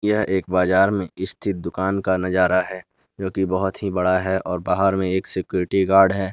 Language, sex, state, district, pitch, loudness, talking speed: Hindi, male, Jharkhand, Garhwa, 95 Hz, -21 LUFS, 200 wpm